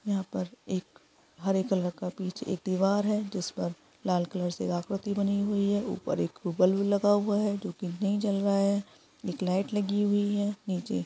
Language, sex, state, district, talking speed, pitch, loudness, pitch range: Hindi, female, Bihar, East Champaran, 200 wpm, 195 Hz, -29 LUFS, 185-205 Hz